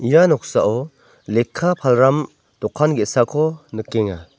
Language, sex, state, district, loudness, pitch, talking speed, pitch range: Garo, male, Meghalaya, North Garo Hills, -18 LUFS, 130 Hz, 95 wpm, 110-150 Hz